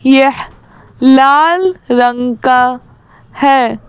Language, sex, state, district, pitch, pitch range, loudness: Hindi, female, Madhya Pradesh, Bhopal, 265 Hz, 250-275 Hz, -10 LUFS